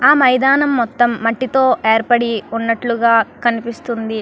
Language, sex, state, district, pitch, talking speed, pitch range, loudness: Telugu, female, Andhra Pradesh, Krishna, 235 Hz, 130 wpm, 230-255 Hz, -15 LUFS